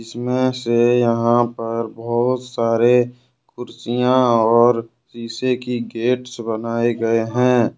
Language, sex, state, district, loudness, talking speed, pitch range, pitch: Hindi, male, Jharkhand, Ranchi, -18 LUFS, 110 wpm, 115-125 Hz, 120 Hz